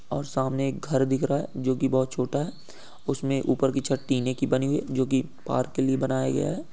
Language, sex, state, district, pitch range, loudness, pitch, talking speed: Hindi, male, Uttar Pradesh, Gorakhpur, 130-135 Hz, -26 LUFS, 135 Hz, 260 wpm